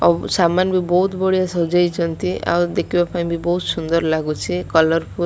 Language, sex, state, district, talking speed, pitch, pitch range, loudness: Odia, female, Odisha, Malkangiri, 150 wpm, 170 Hz, 160-180 Hz, -19 LUFS